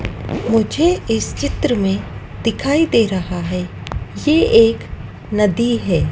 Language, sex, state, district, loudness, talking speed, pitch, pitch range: Hindi, female, Madhya Pradesh, Dhar, -17 LUFS, 120 wpm, 210 Hz, 180-235 Hz